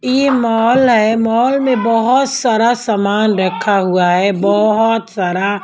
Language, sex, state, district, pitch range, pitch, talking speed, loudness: Hindi, female, Maharashtra, Mumbai Suburban, 200-240 Hz, 225 Hz, 140 wpm, -13 LUFS